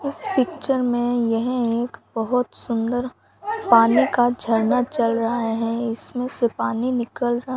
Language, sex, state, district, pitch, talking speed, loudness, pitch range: Hindi, female, Rajasthan, Bikaner, 240 Hz, 150 wpm, -21 LUFS, 230-250 Hz